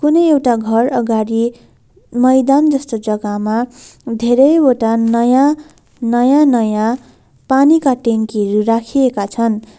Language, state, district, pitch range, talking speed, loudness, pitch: Nepali, West Bengal, Darjeeling, 225-270 Hz, 90 wpm, -14 LUFS, 240 Hz